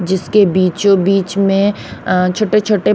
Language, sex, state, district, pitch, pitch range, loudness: Hindi, female, Haryana, Rohtak, 195 Hz, 185-205 Hz, -13 LUFS